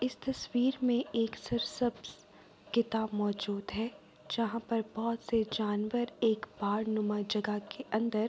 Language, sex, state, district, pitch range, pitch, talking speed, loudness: Urdu, female, Andhra Pradesh, Anantapur, 210-235 Hz, 225 Hz, 95 wpm, -33 LUFS